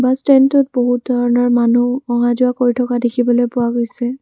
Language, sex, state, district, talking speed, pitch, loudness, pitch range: Assamese, female, Assam, Kamrup Metropolitan, 155 wpm, 245 Hz, -15 LUFS, 240-250 Hz